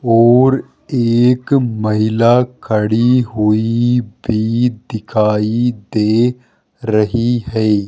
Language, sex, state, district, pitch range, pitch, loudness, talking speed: Hindi, male, Rajasthan, Jaipur, 110-120 Hz, 115 Hz, -14 LUFS, 75 wpm